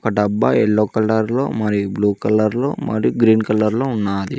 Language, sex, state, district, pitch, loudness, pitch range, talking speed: Telugu, male, Telangana, Mahabubabad, 110 Hz, -17 LUFS, 105-110 Hz, 135 wpm